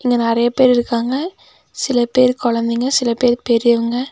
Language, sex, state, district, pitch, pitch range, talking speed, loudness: Tamil, female, Tamil Nadu, Nilgiris, 240 Hz, 235-255 Hz, 145 wpm, -16 LUFS